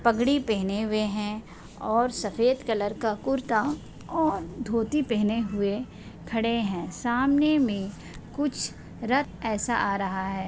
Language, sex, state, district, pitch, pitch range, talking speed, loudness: Hindi, female, Maharashtra, Solapur, 225 Hz, 210-255 Hz, 130 wpm, -27 LUFS